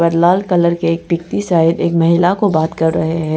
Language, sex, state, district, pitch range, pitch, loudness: Hindi, female, Arunachal Pradesh, Lower Dibang Valley, 165-175 Hz, 170 Hz, -14 LUFS